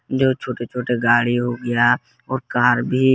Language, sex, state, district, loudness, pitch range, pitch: Hindi, male, Jharkhand, Garhwa, -19 LUFS, 120-130 Hz, 120 Hz